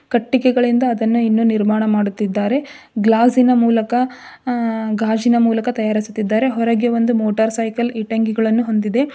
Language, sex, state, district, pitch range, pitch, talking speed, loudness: Kannada, female, Karnataka, Dharwad, 220-240 Hz, 230 Hz, 110 wpm, -17 LUFS